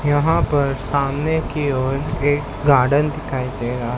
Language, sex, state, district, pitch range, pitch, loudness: Hindi, male, Maharashtra, Mumbai Suburban, 130-145 Hz, 140 Hz, -19 LUFS